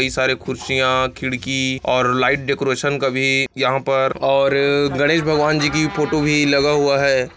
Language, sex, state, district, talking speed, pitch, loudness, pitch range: Hindi, male, Chhattisgarh, Kabirdham, 165 wpm, 135 Hz, -17 LUFS, 130-145 Hz